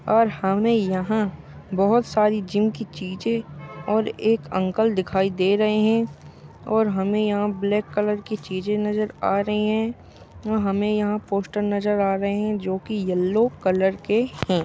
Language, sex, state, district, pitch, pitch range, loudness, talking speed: Hindi, male, Chhattisgarh, Bastar, 210 Hz, 195-215 Hz, -23 LUFS, 165 wpm